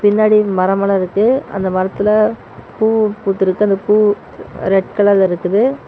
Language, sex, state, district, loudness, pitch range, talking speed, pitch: Tamil, male, Tamil Nadu, Namakkal, -14 LUFS, 195-215 Hz, 135 wpm, 205 Hz